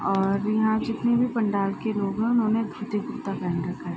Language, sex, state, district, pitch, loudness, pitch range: Hindi, female, Bihar, Araria, 220 Hz, -25 LUFS, 205-230 Hz